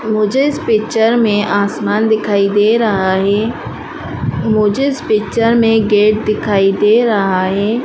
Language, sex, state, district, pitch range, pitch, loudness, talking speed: Hindi, female, Madhya Pradesh, Dhar, 205-225 Hz, 215 Hz, -13 LUFS, 140 wpm